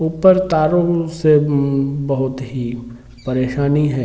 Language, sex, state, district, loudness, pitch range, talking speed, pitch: Hindi, male, Bihar, Sitamarhi, -17 LUFS, 130-160 Hz, 135 wpm, 140 Hz